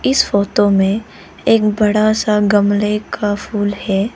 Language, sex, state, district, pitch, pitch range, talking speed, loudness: Hindi, female, Arunachal Pradesh, Lower Dibang Valley, 210 Hz, 205-215 Hz, 145 wpm, -15 LUFS